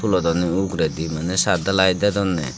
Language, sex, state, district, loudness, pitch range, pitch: Chakma, male, Tripura, Dhalai, -20 LUFS, 85-95 Hz, 90 Hz